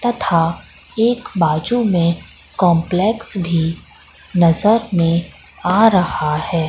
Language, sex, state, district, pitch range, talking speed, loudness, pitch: Hindi, female, Madhya Pradesh, Katni, 165-220 Hz, 100 wpm, -16 LUFS, 175 Hz